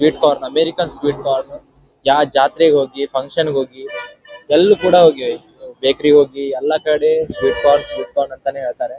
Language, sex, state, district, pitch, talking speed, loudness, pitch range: Kannada, male, Karnataka, Dharwad, 150 Hz, 120 wpm, -15 LUFS, 135-175 Hz